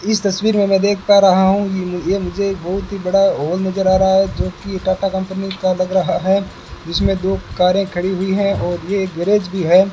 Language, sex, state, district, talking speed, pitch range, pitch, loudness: Hindi, male, Rajasthan, Bikaner, 230 wpm, 185-195 Hz, 190 Hz, -17 LUFS